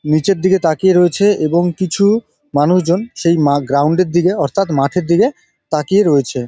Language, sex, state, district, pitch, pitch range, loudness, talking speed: Bengali, male, West Bengal, Jalpaiguri, 175 Hz, 150-190 Hz, -14 LUFS, 165 wpm